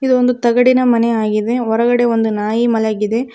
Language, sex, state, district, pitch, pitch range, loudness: Kannada, female, Karnataka, Koppal, 235 Hz, 220-245 Hz, -14 LUFS